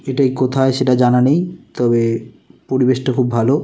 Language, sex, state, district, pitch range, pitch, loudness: Bengali, male, West Bengal, Kolkata, 125-135 Hz, 130 Hz, -16 LUFS